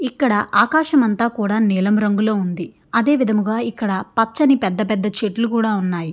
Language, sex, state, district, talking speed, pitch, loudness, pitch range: Telugu, female, Andhra Pradesh, Srikakulam, 155 wpm, 215 Hz, -18 LUFS, 205-235 Hz